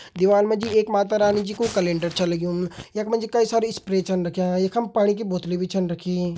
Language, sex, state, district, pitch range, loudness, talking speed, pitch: Hindi, male, Uttarakhand, Tehri Garhwal, 180-215 Hz, -22 LUFS, 245 wpm, 190 Hz